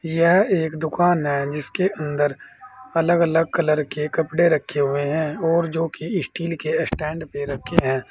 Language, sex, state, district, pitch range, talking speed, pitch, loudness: Hindi, male, Uttar Pradesh, Saharanpur, 150-170 Hz, 170 wpm, 160 Hz, -21 LUFS